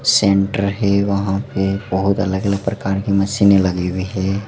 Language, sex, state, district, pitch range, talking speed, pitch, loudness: Hindi, male, Madhya Pradesh, Dhar, 95-100 Hz, 160 wpm, 100 Hz, -17 LUFS